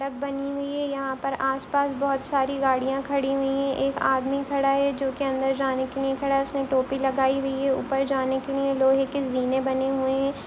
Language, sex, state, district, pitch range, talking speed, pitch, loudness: Hindi, female, Chhattisgarh, Kabirdham, 265-275 Hz, 230 wpm, 270 Hz, -25 LUFS